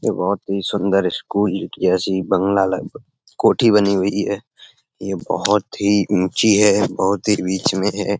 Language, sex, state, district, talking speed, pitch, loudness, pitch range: Hindi, male, Uttar Pradesh, Etah, 160 wpm, 100 Hz, -18 LUFS, 95-105 Hz